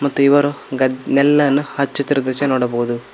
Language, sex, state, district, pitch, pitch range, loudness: Kannada, male, Karnataka, Koppal, 140 Hz, 130-145 Hz, -16 LUFS